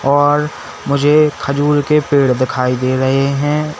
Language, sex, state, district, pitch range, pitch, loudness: Hindi, male, Uttar Pradesh, Saharanpur, 135-150 Hz, 145 Hz, -14 LUFS